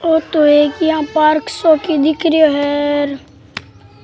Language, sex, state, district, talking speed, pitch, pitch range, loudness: Rajasthani, male, Rajasthan, Churu, 150 wpm, 300 Hz, 285-320 Hz, -14 LUFS